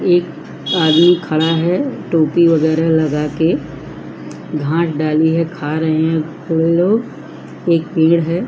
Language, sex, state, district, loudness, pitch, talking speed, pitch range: Hindi, female, Maharashtra, Chandrapur, -15 LUFS, 165 Hz, 130 wpm, 155-170 Hz